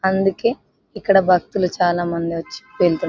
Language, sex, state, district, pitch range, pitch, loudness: Telugu, female, Telangana, Nalgonda, 175-200 Hz, 185 Hz, -19 LUFS